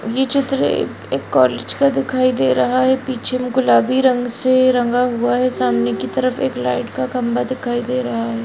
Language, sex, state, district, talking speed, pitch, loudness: Hindi, female, Bihar, Araria, 200 wpm, 245 Hz, -17 LUFS